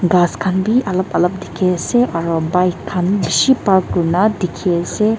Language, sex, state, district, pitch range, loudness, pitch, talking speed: Nagamese, female, Nagaland, Dimapur, 175-205 Hz, -16 LUFS, 185 Hz, 185 wpm